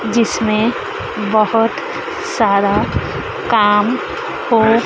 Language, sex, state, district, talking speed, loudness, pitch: Hindi, female, Madhya Pradesh, Dhar, 60 wpm, -16 LUFS, 225 Hz